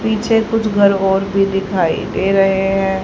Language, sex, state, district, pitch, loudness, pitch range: Hindi, female, Haryana, Charkhi Dadri, 195 Hz, -15 LUFS, 195-210 Hz